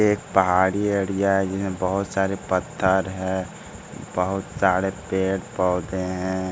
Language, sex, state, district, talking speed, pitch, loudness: Hindi, male, Bihar, Jamui, 120 wpm, 95 Hz, -23 LUFS